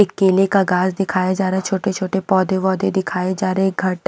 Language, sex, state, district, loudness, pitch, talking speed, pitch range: Hindi, female, Himachal Pradesh, Shimla, -18 LUFS, 190 Hz, 220 wpm, 185-195 Hz